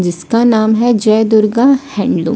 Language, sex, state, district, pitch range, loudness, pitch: Hindi, female, Odisha, Sambalpur, 215-240 Hz, -12 LUFS, 220 Hz